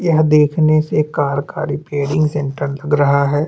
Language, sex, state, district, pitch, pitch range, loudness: Hindi, male, Chhattisgarh, Bastar, 150 Hz, 140-155 Hz, -16 LUFS